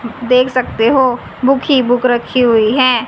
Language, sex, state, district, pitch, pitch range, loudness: Hindi, female, Haryana, Jhajjar, 250 Hz, 240-260 Hz, -13 LUFS